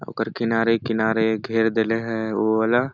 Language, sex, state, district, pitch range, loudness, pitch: Awadhi, male, Chhattisgarh, Balrampur, 110-115 Hz, -22 LUFS, 110 Hz